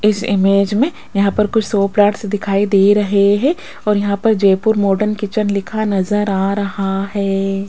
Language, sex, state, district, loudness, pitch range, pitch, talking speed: Hindi, female, Rajasthan, Jaipur, -15 LUFS, 200-210 Hz, 205 Hz, 180 wpm